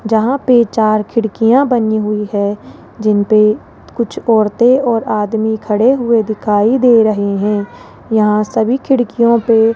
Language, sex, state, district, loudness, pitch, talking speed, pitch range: Hindi, female, Rajasthan, Jaipur, -13 LUFS, 220 Hz, 140 wpm, 210-235 Hz